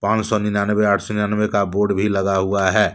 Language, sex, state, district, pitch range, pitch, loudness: Hindi, male, Jharkhand, Deoghar, 100-105 Hz, 100 Hz, -19 LUFS